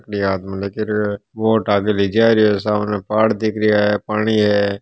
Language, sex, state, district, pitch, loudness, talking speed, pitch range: Hindi, male, Rajasthan, Nagaur, 105 Hz, -17 LUFS, 200 wpm, 100-110 Hz